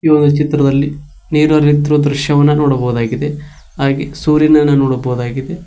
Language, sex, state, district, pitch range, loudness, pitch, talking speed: Kannada, male, Karnataka, Koppal, 140-150 Hz, -13 LUFS, 145 Hz, 105 wpm